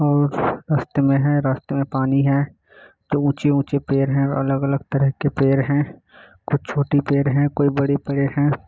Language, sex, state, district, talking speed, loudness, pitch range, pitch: Hindi, male, Bihar, Kishanganj, 195 wpm, -20 LUFS, 140-145 Hz, 140 Hz